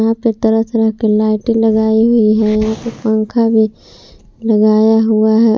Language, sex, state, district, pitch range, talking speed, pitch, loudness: Hindi, female, Jharkhand, Palamu, 215-225 Hz, 170 wpm, 220 Hz, -13 LUFS